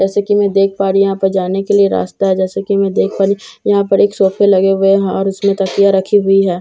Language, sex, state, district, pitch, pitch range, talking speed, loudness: Hindi, female, Bihar, Katihar, 195 Hz, 195-200 Hz, 310 wpm, -13 LUFS